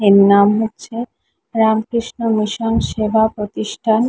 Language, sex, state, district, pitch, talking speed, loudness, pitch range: Bengali, female, West Bengal, Kolkata, 220 Hz, 100 wpm, -16 LUFS, 215-225 Hz